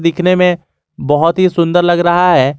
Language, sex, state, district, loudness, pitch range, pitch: Hindi, male, Jharkhand, Garhwa, -12 LUFS, 165-180 Hz, 175 Hz